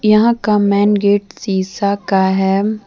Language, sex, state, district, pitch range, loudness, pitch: Hindi, female, Jharkhand, Deoghar, 195-210 Hz, -15 LUFS, 200 Hz